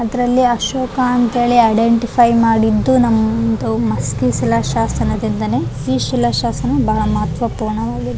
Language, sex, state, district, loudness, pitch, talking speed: Kannada, female, Karnataka, Raichur, -15 LUFS, 210 Hz, 125 wpm